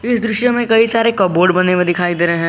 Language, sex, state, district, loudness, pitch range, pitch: Hindi, male, Jharkhand, Garhwa, -14 LUFS, 175-230 Hz, 190 Hz